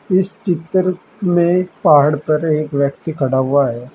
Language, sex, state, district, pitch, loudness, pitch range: Hindi, male, Uttar Pradesh, Saharanpur, 155 Hz, -16 LUFS, 140-180 Hz